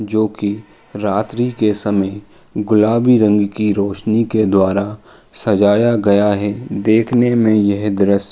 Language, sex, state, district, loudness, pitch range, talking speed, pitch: Hindi, male, Uttar Pradesh, Jalaun, -15 LUFS, 100-110 Hz, 135 wpm, 105 Hz